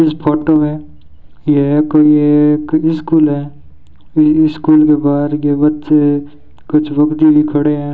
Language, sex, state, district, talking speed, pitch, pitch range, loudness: Hindi, male, Rajasthan, Bikaner, 130 wpm, 150 Hz, 145-155 Hz, -12 LUFS